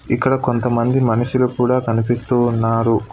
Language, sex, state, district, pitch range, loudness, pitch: Telugu, male, Telangana, Hyderabad, 115-125 Hz, -17 LUFS, 120 Hz